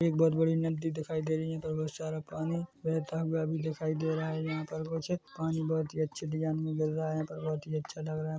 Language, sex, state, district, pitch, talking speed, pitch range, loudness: Hindi, male, Chhattisgarh, Korba, 160 Hz, 265 wpm, 155-160 Hz, -33 LUFS